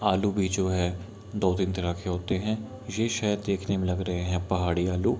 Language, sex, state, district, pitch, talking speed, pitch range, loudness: Hindi, male, Bihar, Kishanganj, 95 Hz, 210 wpm, 90-105 Hz, -28 LUFS